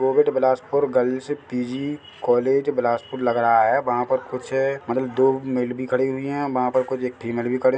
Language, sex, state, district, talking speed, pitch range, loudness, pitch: Hindi, male, Chhattisgarh, Bilaspur, 200 wpm, 125-135 Hz, -22 LUFS, 130 Hz